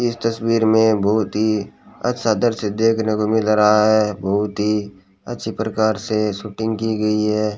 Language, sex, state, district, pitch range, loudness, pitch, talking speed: Hindi, male, Rajasthan, Bikaner, 105-110 Hz, -19 LUFS, 110 Hz, 165 wpm